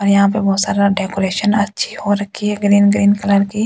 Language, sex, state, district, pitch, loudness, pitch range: Hindi, female, Delhi, New Delhi, 200 Hz, -15 LUFS, 200-205 Hz